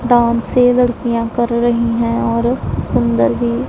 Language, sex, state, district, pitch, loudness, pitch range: Hindi, female, Punjab, Pathankot, 235 Hz, -15 LUFS, 230-240 Hz